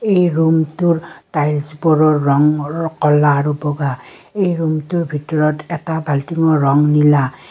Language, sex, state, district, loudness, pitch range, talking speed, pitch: Assamese, female, Assam, Kamrup Metropolitan, -16 LUFS, 145-165 Hz, 130 wpm, 150 Hz